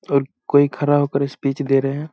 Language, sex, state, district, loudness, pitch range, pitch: Hindi, male, Bihar, Samastipur, -19 LUFS, 135-145 Hz, 140 Hz